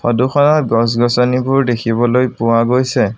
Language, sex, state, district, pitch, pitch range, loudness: Assamese, male, Assam, Sonitpur, 120 Hz, 115-130 Hz, -14 LUFS